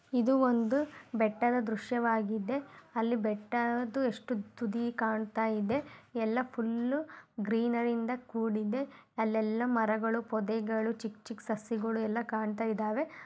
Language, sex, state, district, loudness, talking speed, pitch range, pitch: Kannada, female, Karnataka, Mysore, -33 LUFS, 100 wpm, 220-245 Hz, 230 Hz